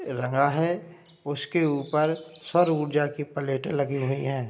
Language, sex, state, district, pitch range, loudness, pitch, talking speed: Hindi, male, Uttar Pradesh, Budaun, 140-160 Hz, -26 LUFS, 145 Hz, 160 wpm